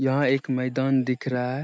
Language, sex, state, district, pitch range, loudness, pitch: Hindi, male, Bihar, Saharsa, 125-135 Hz, -24 LUFS, 130 Hz